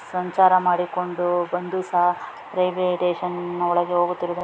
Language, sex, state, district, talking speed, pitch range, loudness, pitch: Kannada, female, Karnataka, Raichur, 110 wpm, 175-180 Hz, -22 LUFS, 180 Hz